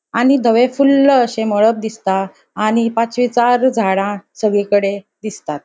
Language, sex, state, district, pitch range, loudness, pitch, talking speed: Konkani, female, Goa, North and South Goa, 205-245 Hz, -15 LUFS, 220 Hz, 125 wpm